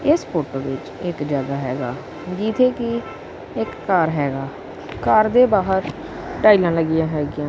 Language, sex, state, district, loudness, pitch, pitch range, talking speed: Punjabi, female, Punjab, Kapurthala, -20 LUFS, 175 Hz, 145-220 Hz, 135 wpm